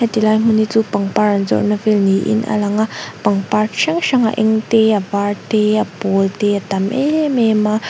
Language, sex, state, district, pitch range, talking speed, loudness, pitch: Mizo, female, Mizoram, Aizawl, 205-220 Hz, 245 wpm, -16 LUFS, 215 Hz